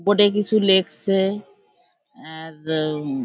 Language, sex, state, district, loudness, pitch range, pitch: Bengali, female, West Bengal, Kolkata, -20 LUFS, 160-210 Hz, 195 Hz